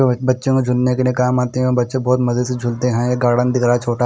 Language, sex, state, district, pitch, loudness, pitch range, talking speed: Hindi, male, Punjab, Kapurthala, 125 Hz, -17 LUFS, 120-125 Hz, 295 wpm